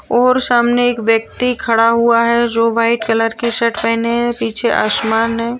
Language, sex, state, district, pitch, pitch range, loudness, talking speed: Hindi, female, Uttar Pradesh, Hamirpur, 230 Hz, 230-240 Hz, -14 LUFS, 180 wpm